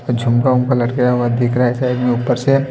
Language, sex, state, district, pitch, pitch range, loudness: Hindi, male, Haryana, Rohtak, 125 Hz, 120-125 Hz, -16 LUFS